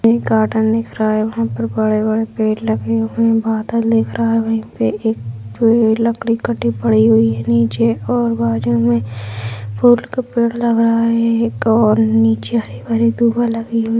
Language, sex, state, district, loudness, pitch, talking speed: Hindi, female, Bihar, Saharsa, -16 LUFS, 220 Hz, 190 wpm